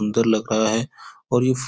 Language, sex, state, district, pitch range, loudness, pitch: Hindi, male, Bihar, Supaul, 110-125 Hz, -21 LUFS, 115 Hz